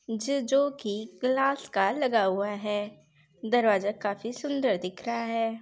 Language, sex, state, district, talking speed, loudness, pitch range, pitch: Hindi, female, Uttar Pradesh, Jalaun, 140 wpm, -28 LUFS, 205-255 Hz, 225 Hz